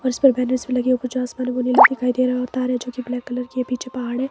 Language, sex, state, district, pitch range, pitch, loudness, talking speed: Hindi, female, Himachal Pradesh, Shimla, 250-255 Hz, 250 Hz, -20 LUFS, 335 wpm